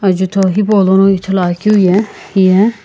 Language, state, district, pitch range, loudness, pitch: Sumi, Nagaland, Kohima, 190-205 Hz, -11 LUFS, 195 Hz